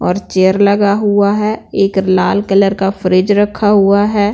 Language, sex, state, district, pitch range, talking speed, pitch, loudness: Hindi, female, Bihar, Patna, 195-205 Hz, 180 wpm, 200 Hz, -12 LUFS